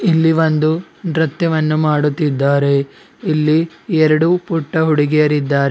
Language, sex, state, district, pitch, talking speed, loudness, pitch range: Kannada, male, Karnataka, Bidar, 155 Hz, 95 wpm, -15 LUFS, 150-165 Hz